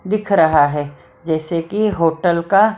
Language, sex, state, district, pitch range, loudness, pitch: Hindi, female, Maharashtra, Mumbai Suburban, 160-205 Hz, -17 LUFS, 170 Hz